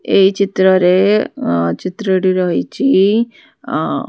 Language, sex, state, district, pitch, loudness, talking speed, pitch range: Odia, female, Odisha, Khordha, 190 Hz, -14 LUFS, 115 wpm, 185-205 Hz